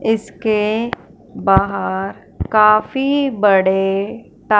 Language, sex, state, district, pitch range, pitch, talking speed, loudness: Hindi, female, Punjab, Fazilka, 195-225 Hz, 210 Hz, 65 wpm, -16 LUFS